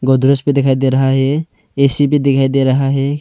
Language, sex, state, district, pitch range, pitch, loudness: Hindi, male, Arunachal Pradesh, Longding, 135-140 Hz, 135 Hz, -13 LUFS